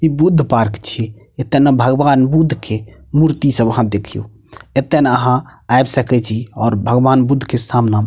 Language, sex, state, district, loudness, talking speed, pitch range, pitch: Maithili, male, Bihar, Purnia, -14 LUFS, 195 wpm, 110-140 Hz, 125 Hz